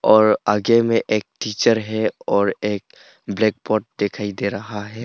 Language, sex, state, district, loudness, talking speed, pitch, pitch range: Hindi, male, Arunachal Pradesh, Papum Pare, -20 LUFS, 165 wpm, 105 Hz, 100-110 Hz